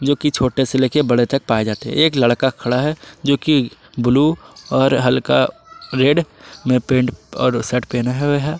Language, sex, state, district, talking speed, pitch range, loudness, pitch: Hindi, male, Jharkhand, Palamu, 175 wpm, 125-150 Hz, -17 LUFS, 135 Hz